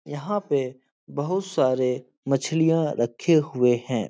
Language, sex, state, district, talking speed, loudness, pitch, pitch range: Hindi, male, Uttar Pradesh, Etah, 115 wpm, -24 LUFS, 140 Hz, 125-160 Hz